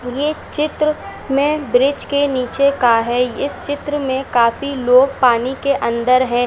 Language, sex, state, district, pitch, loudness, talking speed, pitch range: Hindi, female, Uttar Pradesh, Etah, 270 Hz, -16 LUFS, 160 wpm, 250-285 Hz